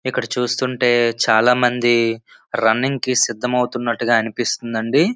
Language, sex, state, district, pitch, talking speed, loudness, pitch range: Telugu, male, Andhra Pradesh, Srikakulam, 120 Hz, 115 wpm, -18 LUFS, 115-125 Hz